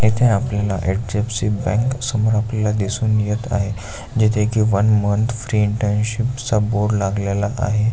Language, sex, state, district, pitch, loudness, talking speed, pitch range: Marathi, male, Maharashtra, Aurangabad, 105 Hz, -19 LUFS, 145 wpm, 105-110 Hz